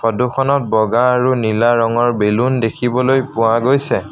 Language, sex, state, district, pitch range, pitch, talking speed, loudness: Assamese, male, Assam, Sonitpur, 115-130 Hz, 120 Hz, 130 wpm, -15 LUFS